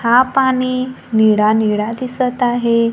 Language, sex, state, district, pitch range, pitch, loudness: Marathi, female, Maharashtra, Gondia, 220-255 Hz, 240 Hz, -15 LUFS